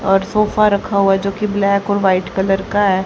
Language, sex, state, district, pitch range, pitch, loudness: Hindi, female, Haryana, Charkhi Dadri, 195-205 Hz, 200 Hz, -16 LUFS